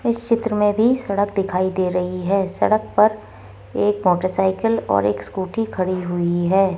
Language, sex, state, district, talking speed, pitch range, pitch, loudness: Hindi, female, Rajasthan, Jaipur, 170 wpm, 180-210 Hz, 190 Hz, -20 LUFS